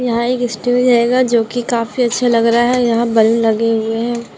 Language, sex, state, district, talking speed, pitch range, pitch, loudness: Hindi, female, Maharashtra, Solapur, 220 wpm, 230-245 Hz, 235 Hz, -14 LUFS